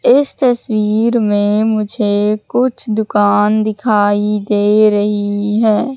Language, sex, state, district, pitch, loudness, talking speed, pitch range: Hindi, female, Madhya Pradesh, Katni, 215 Hz, -14 LUFS, 100 wpm, 205-225 Hz